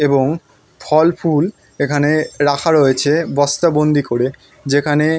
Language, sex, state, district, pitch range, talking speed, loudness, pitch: Bengali, male, West Bengal, North 24 Parganas, 140-155 Hz, 115 wpm, -15 LUFS, 145 Hz